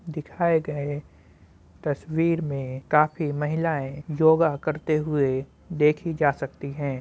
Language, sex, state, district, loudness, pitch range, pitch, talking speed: Hindi, male, Bihar, Muzaffarpur, -25 LUFS, 140-160 Hz, 150 Hz, 110 wpm